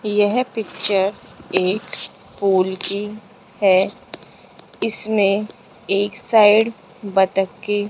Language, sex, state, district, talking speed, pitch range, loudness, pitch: Hindi, female, Rajasthan, Jaipur, 85 wpm, 195-215 Hz, -19 LUFS, 205 Hz